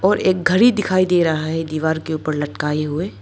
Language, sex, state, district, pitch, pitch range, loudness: Hindi, female, Arunachal Pradesh, Lower Dibang Valley, 160 Hz, 155-185 Hz, -18 LUFS